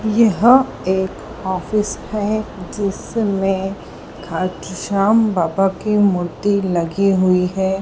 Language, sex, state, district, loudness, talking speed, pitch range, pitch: Hindi, female, Madhya Pradesh, Dhar, -18 LUFS, 90 wpm, 190-210 Hz, 195 Hz